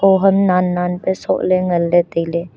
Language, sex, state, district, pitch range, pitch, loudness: Wancho, female, Arunachal Pradesh, Longding, 175-190 Hz, 180 Hz, -16 LUFS